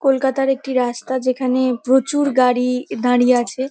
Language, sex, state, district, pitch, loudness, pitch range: Bengali, female, West Bengal, North 24 Parganas, 255 Hz, -18 LUFS, 250-265 Hz